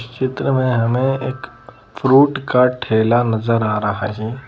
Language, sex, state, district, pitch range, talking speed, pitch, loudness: Hindi, female, Madhya Pradesh, Bhopal, 110-130 Hz, 160 wpm, 125 Hz, -17 LUFS